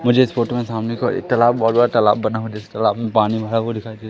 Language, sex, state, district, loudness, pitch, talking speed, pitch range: Hindi, male, Madhya Pradesh, Katni, -18 LUFS, 115 Hz, 320 wpm, 110-120 Hz